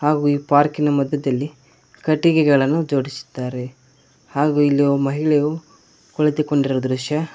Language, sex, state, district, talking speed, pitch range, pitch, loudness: Kannada, male, Karnataka, Koppal, 90 wpm, 135-150 Hz, 145 Hz, -19 LUFS